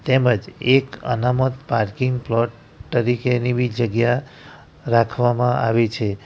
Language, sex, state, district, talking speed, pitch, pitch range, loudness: Gujarati, male, Gujarat, Valsad, 115 wpm, 120 Hz, 115-125 Hz, -20 LUFS